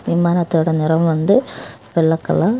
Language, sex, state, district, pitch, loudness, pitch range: Tamil, female, Tamil Nadu, Kanyakumari, 165 Hz, -16 LUFS, 160-175 Hz